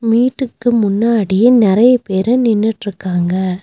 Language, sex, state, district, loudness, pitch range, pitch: Tamil, female, Tamil Nadu, Nilgiris, -13 LUFS, 195-240 Hz, 220 Hz